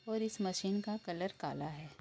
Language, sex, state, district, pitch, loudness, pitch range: Hindi, female, Uttar Pradesh, Jyotiba Phule Nagar, 195 Hz, -39 LUFS, 160-210 Hz